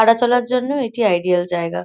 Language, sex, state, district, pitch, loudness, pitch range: Bengali, female, West Bengal, North 24 Parganas, 230 Hz, -18 LUFS, 175-245 Hz